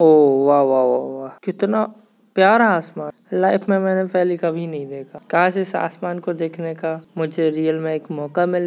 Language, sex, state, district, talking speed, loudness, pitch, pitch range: Hindi, female, Maharashtra, Nagpur, 160 wpm, -19 LUFS, 170 Hz, 155-190 Hz